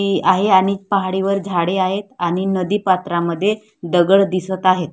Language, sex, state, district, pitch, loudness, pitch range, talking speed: Marathi, female, Maharashtra, Gondia, 190 Hz, -17 LUFS, 180-195 Hz, 135 wpm